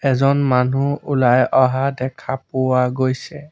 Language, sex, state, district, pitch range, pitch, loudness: Assamese, male, Assam, Sonitpur, 130-140 Hz, 130 Hz, -18 LUFS